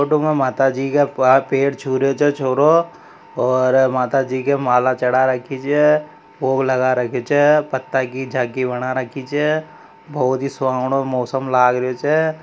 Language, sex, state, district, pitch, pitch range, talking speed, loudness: Marwari, male, Rajasthan, Nagaur, 135 Hz, 130-145 Hz, 160 wpm, -18 LUFS